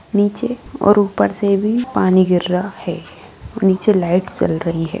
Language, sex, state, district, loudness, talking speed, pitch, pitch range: Hindi, female, Bihar, East Champaran, -17 LUFS, 180 wpm, 200 Hz, 180-205 Hz